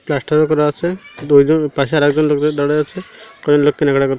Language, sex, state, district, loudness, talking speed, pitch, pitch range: Bengali, male, Odisha, Malkangiri, -15 LUFS, 215 wpm, 150 Hz, 145-155 Hz